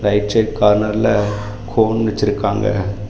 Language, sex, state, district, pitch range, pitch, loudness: Tamil, male, Tamil Nadu, Namakkal, 105-110 Hz, 105 Hz, -17 LUFS